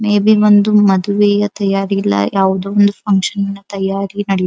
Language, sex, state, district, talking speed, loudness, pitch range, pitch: Kannada, female, Karnataka, Dharwad, 160 wpm, -14 LUFS, 195-205 Hz, 200 Hz